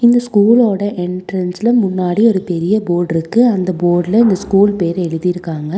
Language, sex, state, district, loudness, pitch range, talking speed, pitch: Tamil, female, Tamil Nadu, Nilgiris, -14 LUFS, 175-215 Hz, 135 wpm, 185 Hz